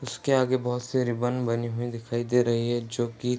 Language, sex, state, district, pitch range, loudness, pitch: Hindi, male, Bihar, Bhagalpur, 120-125 Hz, -27 LUFS, 120 Hz